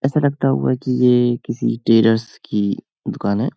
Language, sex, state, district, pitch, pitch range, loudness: Hindi, male, Uttar Pradesh, Hamirpur, 115 Hz, 105-125 Hz, -18 LUFS